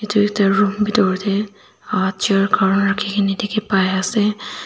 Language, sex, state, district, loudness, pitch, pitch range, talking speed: Nagamese, female, Nagaland, Dimapur, -18 LUFS, 205 Hz, 195-210 Hz, 130 wpm